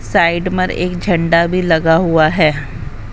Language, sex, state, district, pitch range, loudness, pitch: Hindi, female, Haryana, Jhajjar, 155-180 Hz, -14 LUFS, 165 Hz